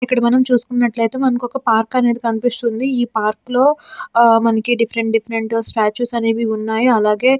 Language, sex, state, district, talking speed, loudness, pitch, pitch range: Telugu, female, Andhra Pradesh, Srikakulam, 155 wpm, -16 LUFS, 235 Hz, 225-250 Hz